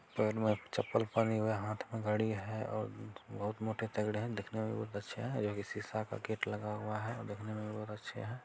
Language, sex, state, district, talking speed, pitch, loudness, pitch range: Hindi, male, Bihar, Araria, 235 wpm, 110 Hz, -38 LUFS, 105-110 Hz